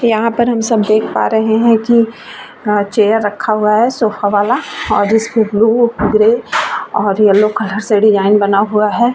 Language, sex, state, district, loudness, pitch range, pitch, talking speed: Hindi, female, Uttar Pradesh, Varanasi, -13 LUFS, 210-230 Hz, 215 Hz, 175 wpm